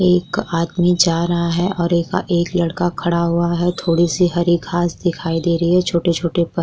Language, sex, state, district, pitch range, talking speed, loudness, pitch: Hindi, female, Uttar Pradesh, Jyotiba Phule Nagar, 170-175 Hz, 210 wpm, -18 LUFS, 170 Hz